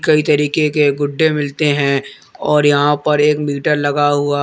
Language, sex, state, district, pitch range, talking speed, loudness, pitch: Hindi, male, Uttar Pradesh, Lalitpur, 145-150 Hz, 175 wpm, -15 LUFS, 145 Hz